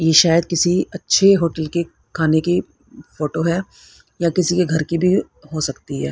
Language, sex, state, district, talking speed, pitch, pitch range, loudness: Hindi, female, Haryana, Rohtak, 185 wpm, 170 Hz, 160-175 Hz, -18 LUFS